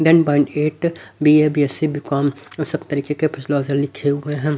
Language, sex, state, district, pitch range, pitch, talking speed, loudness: Hindi, male, Haryana, Rohtak, 140-155 Hz, 150 Hz, 210 wpm, -19 LUFS